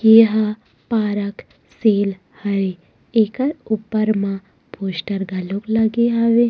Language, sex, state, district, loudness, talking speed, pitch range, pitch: Chhattisgarhi, female, Chhattisgarh, Rajnandgaon, -19 LUFS, 100 wpm, 200-225 Hz, 215 Hz